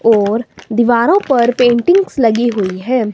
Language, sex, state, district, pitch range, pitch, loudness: Hindi, female, Himachal Pradesh, Shimla, 220-250 Hz, 235 Hz, -13 LUFS